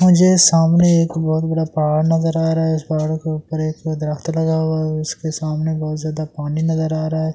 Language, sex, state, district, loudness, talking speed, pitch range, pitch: Hindi, male, Delhi, New Delhi, -18 LUFS, 220 wpm, 155-160 Hz, 160 Hz